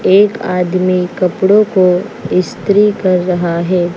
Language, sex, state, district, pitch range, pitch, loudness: Hindi, female, Bihar, Patna, 180-200 Hz, 185 Hz, -13 LUFS